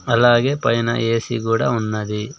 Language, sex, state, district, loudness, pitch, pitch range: Telugu, male, Andhra Pradesh, Sri Satya Sai, -18 LUFS, 115 Hz, 115-120 Hz